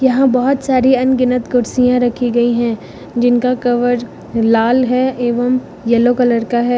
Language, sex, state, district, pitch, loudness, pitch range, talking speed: Hindi, female, Uttar Pradesh, Lucknow, 245 Hz, -14 LUFS, 240-255 Hz, 150 wpm